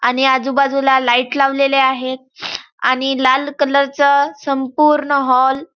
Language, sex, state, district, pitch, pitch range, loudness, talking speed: Marathi, female, Maharashtra, Chandrapur, 270 Hz, 260-280 Hz, -15 LUFS, 125 wpm